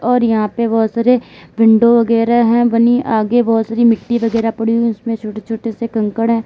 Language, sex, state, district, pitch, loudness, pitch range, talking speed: Hindi, female, Uttar Pradesh, Lalitpur, 230 Hz, -14 LUFS, 225-235 Hz, 205 wpm